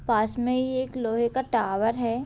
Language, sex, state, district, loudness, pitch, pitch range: Hindi, male, Bihar, Gopalganj, -26 LUFS, 235 Hz, 225-255 Hz